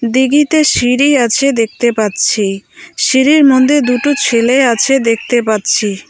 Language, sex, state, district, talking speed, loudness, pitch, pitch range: Bengali, female, West Bengal, Cooch Behar, 120 wpm, -11 LUFS, 245 Hz, 230-280 Hz